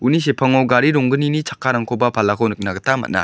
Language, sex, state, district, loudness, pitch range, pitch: Garo, male, Meghalaya, West Garo Hills, -17 LUFS, 115-140 Hz, 130 Hz